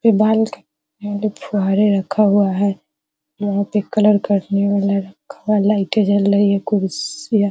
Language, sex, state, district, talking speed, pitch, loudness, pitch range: Hindi, female, Bihar, Araria, 170 wpm, 205 Hz, -17 LUFS, 200-210 Hz